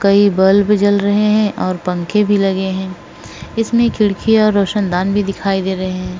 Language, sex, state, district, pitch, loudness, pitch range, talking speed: Hindi, female, Uttar Pradesh, Etah, 200 Hz, -15 LUFS, 190-210 Hz, 185 wpm